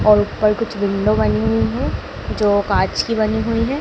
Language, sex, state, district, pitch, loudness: Hindi, male, Madhya Pradesh, Dhar, 205 Hz, -18 LUFS